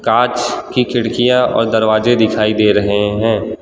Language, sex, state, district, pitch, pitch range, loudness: Hindi, male, Gujarat, Valsad, 110 Hz, 105-120 Hz, -14 LUFS